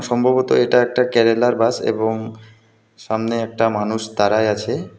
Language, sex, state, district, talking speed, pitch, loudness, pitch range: Bengali, male, West Bengal, Alipurduar, 130 wpm, 115 Hz, -18 LUFS, 110-120 Hz